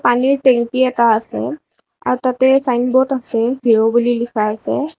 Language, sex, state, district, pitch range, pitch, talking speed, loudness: Assamese, female, Assam, Kamrup Metropolitan, 235-260 Hz, 250 Hz, 145 wpm, -16 LUFS